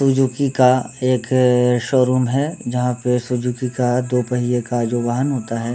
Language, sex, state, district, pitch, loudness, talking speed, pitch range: Hindi, male, Jharkhand, Sahebganj, 125 Hz, -18 LUFS, 165 wpm, 120-130 Hz